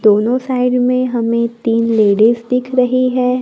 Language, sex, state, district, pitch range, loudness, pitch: Hindi, female, Maharashtra, Gondia, 230-255 Hz, -14 LUFS, 250 Hz